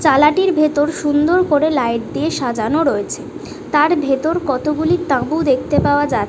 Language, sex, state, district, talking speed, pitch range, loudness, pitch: Bengali, female, West Bengal, Jhargram, 160 wpm, 275-320 Hz, -16 LUFS, 300 Hz